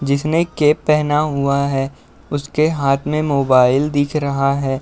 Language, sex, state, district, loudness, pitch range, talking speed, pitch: Hindi, male, Uttar Pradesh, Budaun, -17 LUFS, 140-150 Hz, 150 wpm, 140 Hz